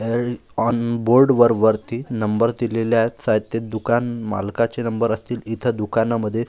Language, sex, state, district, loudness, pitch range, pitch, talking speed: Marathi, male, Maharashtra, Gondia, -20 LUFS, 110-120 Hz, 115 Hz, 150 wpm